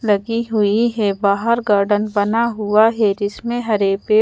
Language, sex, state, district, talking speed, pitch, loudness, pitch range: Hindi, female, Madhya Pradesh, Bhopal, 170 wpm, 215 Hz, -17 LUFS, 205-230 Hz